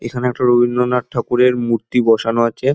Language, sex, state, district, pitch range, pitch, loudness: Bengali, male, West Bengal, Dakshin Dinajpur, 115-125 Hz, 120 Hz, -16 LUFS